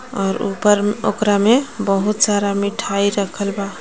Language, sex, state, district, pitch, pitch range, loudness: Bhojpuri, female, Jharkhand, Palamu, 205 Hz, 200-210 Hz, -18 LUFS